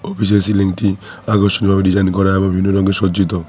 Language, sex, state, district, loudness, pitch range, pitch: Bengali, male, West Bengal, Cooch Behar, -15 LUFS, 95-100 Hz, 95 Hz